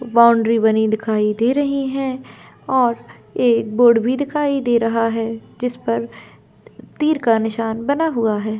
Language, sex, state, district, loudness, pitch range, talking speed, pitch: Hindi, female, Jharkhand, Jamtara, -18 LUFS, 225-265 Hz, 145 wpm, 235 Hz